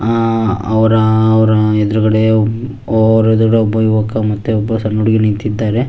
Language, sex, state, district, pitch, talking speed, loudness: Kannada, male, Karnataka, Shimoga, 110 Hz, 100 wpm, -13 LUFS